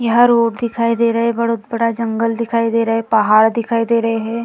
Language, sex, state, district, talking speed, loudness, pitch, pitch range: Hindi, female, Bihar, Vaishali, 270 wpm, -16 LUFS, 230 Hz, 230-235 Hz